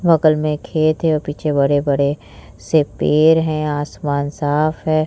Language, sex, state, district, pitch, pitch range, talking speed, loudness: Hindi, female, Bihar, Vaishali, 150 Hz, 145-155 Hz, 140 wpm, -17 LUFS